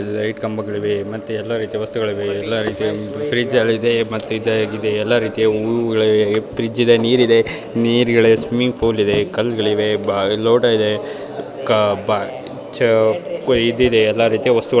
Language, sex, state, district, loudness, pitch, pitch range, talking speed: Kannada, male, Karnataka, Bijapur, -17 LUFS, 110 Hz, 105-115 Hz, 125 wpm